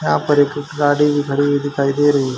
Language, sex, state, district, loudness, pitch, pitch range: Hindi, male, Haryana, Rohtak, -16 LUFS, 145 Hz, 140-145 Hz